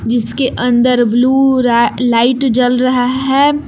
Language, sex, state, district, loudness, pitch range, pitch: Hindi, female, Jharkhand, Palamu, -12 LUFS, 240-265 Hz, 250 Hz